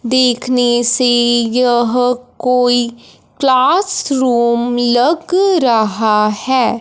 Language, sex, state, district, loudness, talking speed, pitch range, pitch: Hindi, female, Punjab, Fazilka, -13 LUFS, 80 wpm, 240-255 Hz, 245 Hz